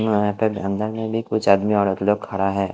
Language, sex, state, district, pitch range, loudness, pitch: Hindi, male, Odisha, Khordha, 100-110 Hz, -21 LUFS, 105 Hz